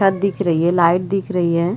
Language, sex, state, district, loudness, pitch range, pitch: Hindi, female, Chhattisgarh, Rajnandgaon, -17 LUFS, 170-195 Hz, 180 Hz